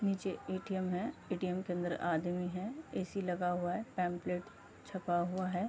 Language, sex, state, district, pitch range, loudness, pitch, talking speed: Hindi, female, Uttar Pradesh, Gorakhpur, 175-190 Hz, -38 LUFS, 180 Hz, 170 wpm